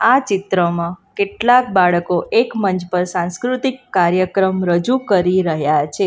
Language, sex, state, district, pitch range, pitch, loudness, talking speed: Gujarati, female, Gujarat, Valsad, 175-215 Hz, 185 Hz, -17 LUFS, 130 wpm